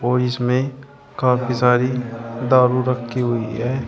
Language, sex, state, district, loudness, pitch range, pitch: Hindi, male, Uttar Pradesh, Shamli, -19 LUFS, 120-130 Hz, 125 Hz